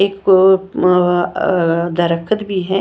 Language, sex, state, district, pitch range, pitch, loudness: Hindi, female, Haryana, Jhajjar, 175-195 Hz, 185 Hz, -14 LUFS